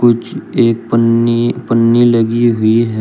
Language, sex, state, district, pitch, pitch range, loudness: Hindi, male, Uttar Pradesh, Shamli, 115 Hz, 115-120 Hz, -12 LUFS